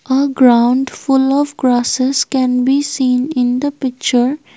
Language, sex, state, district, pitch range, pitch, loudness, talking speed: English, female, Assam, Kamrup Metropolitan, 250-275 Hz, 260 Hz, -14 LUFS, 145 wpm